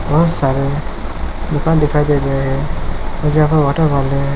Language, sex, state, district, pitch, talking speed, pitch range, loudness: Hindi, male, Chhattisgarh, Bilaspur, 145 Hz, 140 wpm, 140-155 Hz, -16 LUFS